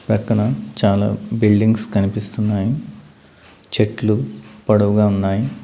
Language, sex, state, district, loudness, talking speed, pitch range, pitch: Telugu, male, Andhra Pradesh, Manyam, -18 LUFS, 75 wpm, 100-110 Hz, 105 Hz